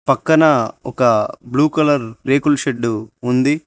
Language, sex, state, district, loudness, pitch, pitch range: Telugu, male, Telangana, Mahabubabad, -16 LUFS, 140 Hz, 125-150 Hz